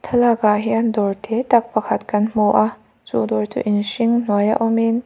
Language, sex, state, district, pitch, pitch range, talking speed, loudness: Mizo, female, Mizoram, Aizawl, 215 Hz, 205-230 Hz, 225 wpm, -18 LUFS